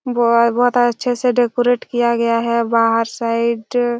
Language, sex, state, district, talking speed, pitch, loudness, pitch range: Hindi, female, Chhattisgarh, Raigarh, 180 wpm, 235 Hz, -16 LUFS, 230-245 Hz